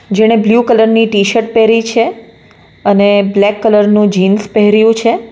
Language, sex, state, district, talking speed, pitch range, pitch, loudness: Gujarati, female, Gujarat, Valsad, 160 wpm, 205-230 Hz, 220 Hz, -10 LUFS